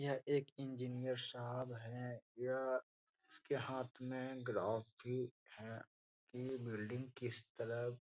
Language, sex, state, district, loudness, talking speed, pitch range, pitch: Hindi, male, Bihar, Jahanabad, -45 LUFS, 135 wpm, 120-130 Hz, 125 Hz